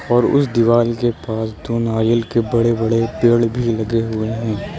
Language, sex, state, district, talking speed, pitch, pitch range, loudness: Hindi, male, Uttar Pradesh, Lucknow, 190 wpm, 115 Hz, 110-120 Hz, -17 LUFS